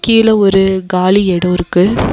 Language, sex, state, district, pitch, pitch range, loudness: Tamil, female, Tamil Nadu, Nilgiris, 190 Hz, 180-205 Hz, -11 LUFS